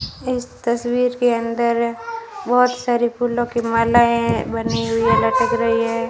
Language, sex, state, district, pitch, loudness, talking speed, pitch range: Hindi, female, Rajasthan, Bikaner, 240 Hz, -18 LUFS, 150 wpm, 230-245 Hz